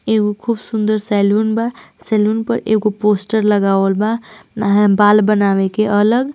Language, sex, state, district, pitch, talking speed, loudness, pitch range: Hindi, female, Bihar, East Champaran, 215 Hz, 130 wpm, -15 LUFS, 205-220 Hz